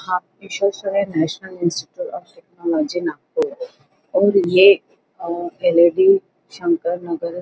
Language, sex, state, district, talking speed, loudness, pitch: Hindi, female, Maharashtra, Nagpur, 95 wpm, -19 LUFS, 195 Hz